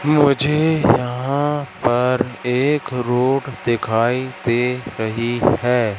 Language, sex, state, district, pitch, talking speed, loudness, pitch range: Hindi, male, Madhya Pradesh, Katni, 125 Hz, 90 wpm, -19 LUFS, 120-140 Hz